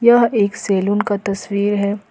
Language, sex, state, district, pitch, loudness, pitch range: Hindi, female, Jharkhand, Ranchi, 205 Hz, -17 LUFS, 200-210 Hz